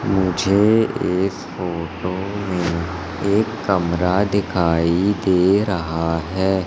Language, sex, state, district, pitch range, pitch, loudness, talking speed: Hindi, male, Madhya Pradesh, Katni, 85-100 Hz, 95 Hz, -19 LUFS, 90 wpm